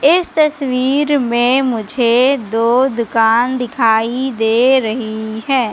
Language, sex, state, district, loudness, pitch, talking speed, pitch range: Hindi, female, Madhya Pradesh, Katni, -14 LUFS, 245 Hz, 105 wpm, 225-265 Hz